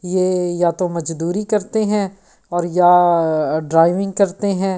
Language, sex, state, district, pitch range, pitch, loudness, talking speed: Hindi, female, Delhi, New Delhi, 170-195 Hz, 180 Hz, -17 LUFS, 140 wpm